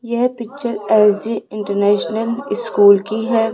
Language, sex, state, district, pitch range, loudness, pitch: Hindi, female, Rajasthan, Jaipur, 210-235 Hz, -16 LUFS, 225 Hz